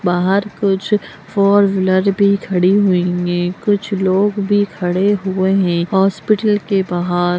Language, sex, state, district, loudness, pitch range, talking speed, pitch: Hindi, female, Bihar, Saran, -15 LUFS, 180-200 Hz, 140 wpm, 195 Hz